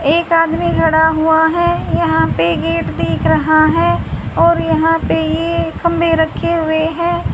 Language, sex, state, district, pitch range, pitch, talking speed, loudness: Hindi, female, Haryana, Jhajjar, 315-335 Hz, 320 Hz, 155 wpm, -14 LUFS